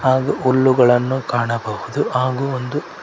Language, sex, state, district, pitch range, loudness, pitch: Kannada, male, Karnataka, Koppal, 120-130 Hz, -18 LUFS, 130 Hz